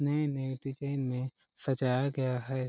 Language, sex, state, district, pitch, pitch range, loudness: Hindi, male, Chhattisgarh, Sarguja, 135 Hz, 130-140 Hz, -33 LUFS